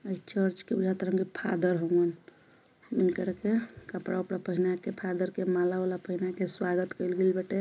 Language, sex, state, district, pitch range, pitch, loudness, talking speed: Hindi, female, Uttar Pradesh, Ghazipur, 180-190 Hz, 185 Hz, -30 LUFS, 165 wpm